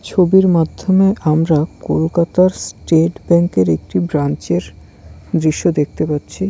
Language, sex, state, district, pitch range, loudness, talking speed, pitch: Bengali, male, West Bengal, Kolkata, 145-175 Hz, -15 LUFS, 120 wpm, 160 Hz